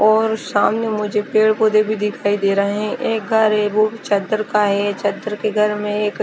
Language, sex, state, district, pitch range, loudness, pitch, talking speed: Hindi, female, Chandigarh, Chandigarh, 205-215 Hz, -18 LUFS, 210 Hz, 220 wpm